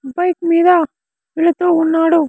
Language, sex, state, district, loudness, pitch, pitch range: Telugu, male, Andhra Pradesh, Sri Satya Sai, -14 LUFS, 335 Hz, 325-350 Hz